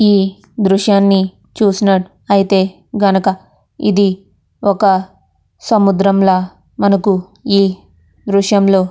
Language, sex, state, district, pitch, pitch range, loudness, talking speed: Telugu, female, Andhra Pradesh, Krishna, 195 Hz, 190-200 Hz, -14 LUFS, 85 wpm